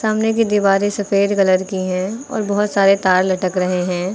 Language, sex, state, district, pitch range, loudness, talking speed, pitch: Hindi, female, Uttar Pradesh, Lucknow, 185-205 Hz, -17 LUFS, 200 wpm, 195 Hz